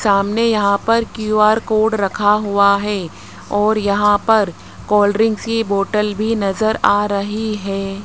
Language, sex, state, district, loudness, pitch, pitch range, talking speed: Hindi, male, Rajasthan, Jaipur, -16 LUFS, 210 Hz, 200-220 Hz, 140 wpm